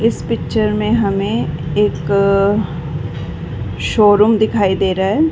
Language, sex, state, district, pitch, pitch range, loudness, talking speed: Hindi, female, Uttar Pradesh, Varanasi, 200 Hz, 150-210 Hz, -16 LUFS, 125 wpm